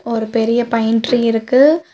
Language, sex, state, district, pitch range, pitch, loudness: Tamil, female, Tamil Nadu, Nilgiris, 225-250 Hz, 230 Hz, -15 LUFS